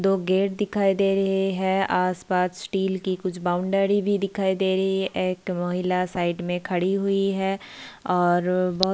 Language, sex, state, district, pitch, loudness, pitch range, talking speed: Hindi, female, Bihar, Kishanganj, 190 Hz, -24 LUFS, 180-195 Hz, 175 wpm